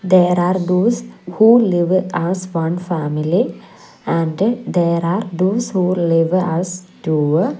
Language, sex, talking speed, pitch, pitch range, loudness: English, female, 125 wpm, 180 Hz, 170-190 Hz, -17 LUFS